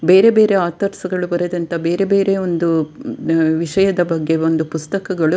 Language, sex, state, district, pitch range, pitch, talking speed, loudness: Kannada, female, Karnataka, Dakshina Kannada, 165-195 Hz, 175 Hz, 155 wpm, -17 LUFS